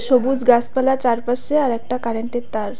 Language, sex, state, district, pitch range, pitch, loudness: Bengali, female, West Bengal, Cooch Behar, 235-260 Hz, 245 Hz, -19 LUFS